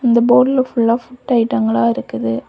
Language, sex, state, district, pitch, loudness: Tamil, female, Tamil Nadu, Kanyakumari, 230 Hz, -15 LUFS